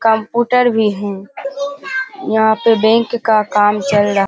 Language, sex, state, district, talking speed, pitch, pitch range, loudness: Hindi, female, Bihar, Kishanganj, 155 wpm, 220 Hz, 205-250 Hz, -15 LUFS